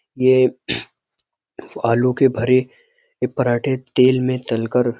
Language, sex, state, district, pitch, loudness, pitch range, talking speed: Hindi, male, Uttar Pradesh, Jyotiba Phule Nagar, 130 Hz, -18 LUFS, 120-130 Hz, 110 wpm